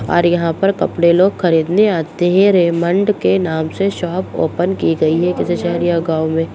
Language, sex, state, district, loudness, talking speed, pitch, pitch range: Hindi, female, Bihar, Purnia, -15 LUFS, 200 wpm, 175 Hz, 165-185 Hz